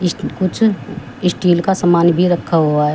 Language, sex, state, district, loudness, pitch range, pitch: Hindi, female, Uttar Pradesh, Shamli, -15 LUFS, 170-185 Hz, 175 Hz